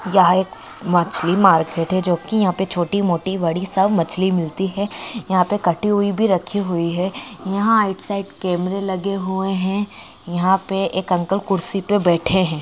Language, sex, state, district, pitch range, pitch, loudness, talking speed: Hindi, female, Karnataka, Raichur, 175-200 Hz, 190 Hz, -19 LUFS, 175 wpm